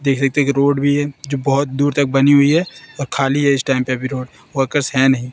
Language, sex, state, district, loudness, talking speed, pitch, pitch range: Hindi, female, Madhya Pradesh, Katni, -16 LUFS, 280 wpm, 140 Hz, 135-145 Hz